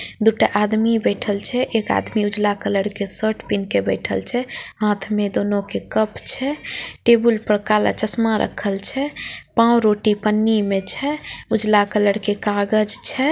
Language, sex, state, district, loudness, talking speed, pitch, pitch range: Maithili, female, Bihar, Samastipur, -19 LUFS, 160 wpm, 215 Hz, 205-230 Hz